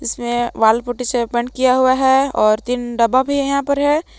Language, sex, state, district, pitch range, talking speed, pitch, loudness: Hindi, female, Jharkhand, Palamu, 240-270 Hz, 215 wpm, 250 Hz, -16 LUFS